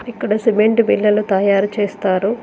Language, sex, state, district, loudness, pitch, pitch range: Telugu, female, Telangana, Mahabubabad, -16 LUFS, 210 Hz, 200-225 Hz